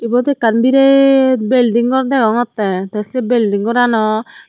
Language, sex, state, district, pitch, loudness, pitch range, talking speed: Chakma, female, Tripura, Dhalai, 240 Hz, -13 LUFS, 220-260 Hz, 135 wpm